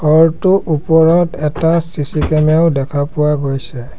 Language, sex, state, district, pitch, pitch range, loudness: Assamese, male, Assam, Sonitpur, 155 Hz, 145-165 Hz, -14 LUFS